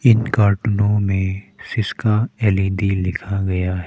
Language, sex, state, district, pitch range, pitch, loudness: Hindi, male, Arunachal Pradesh, Papum Pare, 95-110 Hz, 100 Hz, -19 LUFS